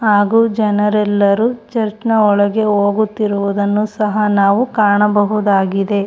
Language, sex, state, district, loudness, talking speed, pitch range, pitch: Kannada, female, Karnataka, Shimoga, -14 LUFS, 90 wpm, 205-215 Hz, 210 Hz